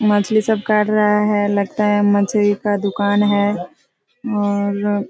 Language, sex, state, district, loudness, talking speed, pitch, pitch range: Hindi, female, Bihar, Kishanganj, -17 LUFS, 140 wpm, 205 Hz, 205-210 Hz